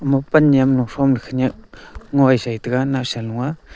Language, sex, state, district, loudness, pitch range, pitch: Wancho, male, Arunachal Pradesh, Longding, -18 LUFS, 125-140 Hz, 130 Hz